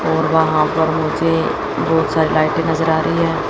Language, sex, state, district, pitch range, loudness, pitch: Hindi, female, Chandigarh, Chandigarh, 155-160 Hz, -16 LUFS, 160 Hz